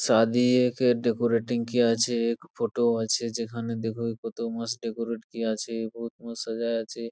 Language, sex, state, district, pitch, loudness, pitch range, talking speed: Bengali, male, West Bengal, Purulia, 115 Hz, -27 LUFS, 115-120 Hz, 170 wpm